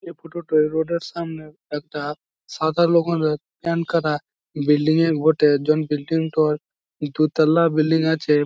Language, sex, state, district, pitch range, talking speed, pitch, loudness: Bengali, male, West Bengal, Jalpaiguri, 150-165 Hz, 135 wpm, 155 Hz, -21 LUFS